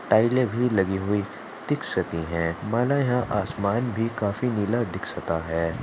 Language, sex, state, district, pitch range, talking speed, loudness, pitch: Hindi, male, Maharashtra, Aurangabad, 95-120 Hz, 135 wpm, -25 LUFS, 105 Hz